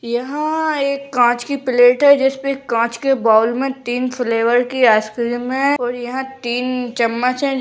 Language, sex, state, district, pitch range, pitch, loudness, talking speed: Hindi, male, Rajasthan, Nagaur, 240-270 Hz, 250 Hz, -17 LUFS, 180 wpm